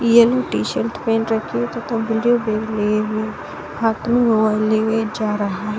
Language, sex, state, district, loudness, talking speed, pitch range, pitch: Hindi, female, Bihar, Saran, -19 LUFS, 185 wpm, 215-235 Hz, 220 Hz